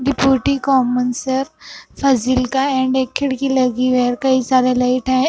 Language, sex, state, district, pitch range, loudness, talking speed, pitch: Hindi, female, Punjab, Fazilka, 255-270 Hz, -17 LUFS, 145 wpm, 260 Hz